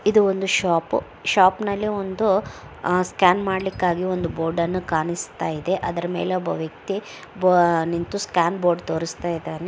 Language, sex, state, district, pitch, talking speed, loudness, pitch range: Kannada, female, Karnataka, Mysore, 180 Hz, 130 wpm, -22 LUFS, 170-190 Hz